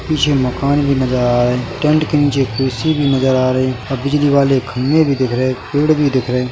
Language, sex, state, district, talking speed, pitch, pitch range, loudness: Hindi, male, Chhattisgarh, Bilaspur, 250 wpm, 135 Hz, 125-145 Hz, -15 LUFS